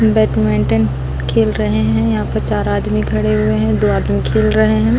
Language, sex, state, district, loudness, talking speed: Hindi, female, Chhattisgarh, Sukma, -15 LUFS, 205 wpm